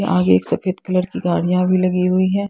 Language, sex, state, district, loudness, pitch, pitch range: Hindi, female, Haryana, Jhajjar, -18 LUFS, 185 Hz, 175-185 Hz